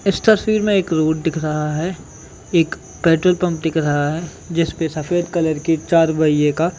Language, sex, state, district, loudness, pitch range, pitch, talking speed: Hindi, male, Chhattisgarh, Bilaspur, -18 LUFS, 155-175 Hz, 165 Hz, 185 wpm